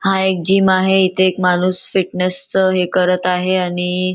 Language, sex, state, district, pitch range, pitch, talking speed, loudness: Marathi, female, Maharashtra, Nagpur, 180-190 Hz, 185 Hz, 205 wpm, -14 LUFS